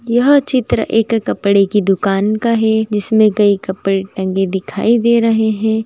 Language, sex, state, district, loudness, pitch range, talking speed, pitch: Magahi, female, Bihar, Gaya, -14 LUFS, 200-230 Hz, 175 wpm, 215 Hz